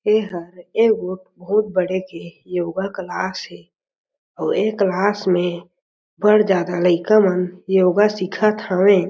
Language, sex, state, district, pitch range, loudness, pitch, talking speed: Chhattisgarhi, male, Chhattisgarh, Jashpur, 180-210 Hz, -19 LUFS, 185 Hz, 140 wpm